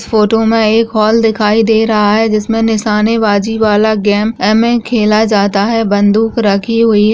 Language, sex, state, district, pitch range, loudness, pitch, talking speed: Hindi, female, Rajasthan, Churu, 210-225 Hz, -11 LUFS, 220 Hz, 185 wpm